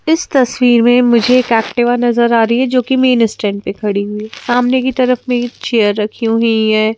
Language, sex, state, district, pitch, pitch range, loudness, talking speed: Hindi, female, Madhya Pradesh, Bhopal, 240 Hz, 225-250 Hz, -13 LUFS, 215 wpm